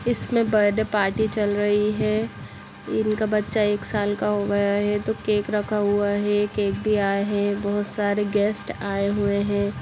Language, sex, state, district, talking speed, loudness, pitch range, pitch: Hindi, female, Bihar, Saran, 175 wpm, -23 LUFS, 205-215 Hz, 205 Hz